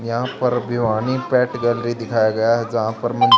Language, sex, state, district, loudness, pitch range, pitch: Hindi, male, Haryana, Charkhi Dadri, -20 LUFS, 115-125 Hz, 120 Hz